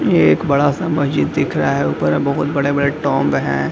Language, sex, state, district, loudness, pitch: Hindi, male, Bihar, Gaya, -16 LUFS, 135 Hz